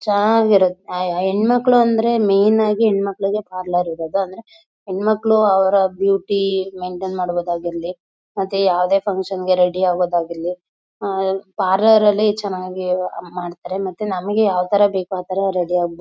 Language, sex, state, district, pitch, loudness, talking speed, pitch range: Kannada, female, Karnataka, Mysore, 190 Hz, -18 LUFS, 130 wpm, 180-205 Hz